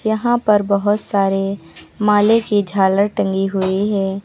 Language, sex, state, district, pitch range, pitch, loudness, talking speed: Hindi, female, Uttar Pradesh, Lucknow, 195-210 Hz, 200 Hz, -17 LUFS, 140 wpm